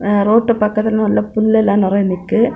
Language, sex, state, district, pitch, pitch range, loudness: Tamil, female, Tamil Nadu, Kanyakumari, 215 Hz, 205-220 Hz, -14 LUFS